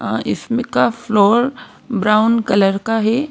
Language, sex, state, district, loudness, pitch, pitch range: Hindi, female, Madhya Pradesh, Bhopal, -16 LUFS, 225 Hz, 210-240 Hz